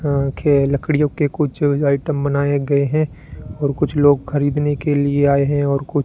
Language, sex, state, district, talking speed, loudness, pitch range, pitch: Hindi, male, Rajasthan, Bikaner, 210 wpm, -18 LUFS, 140-145 Hz, 145 Hz